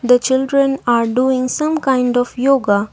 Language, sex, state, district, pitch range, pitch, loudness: English, female, Assam, Kamrup Metropolitan, 245-270 Hz, 255 Hz, -15 LUFS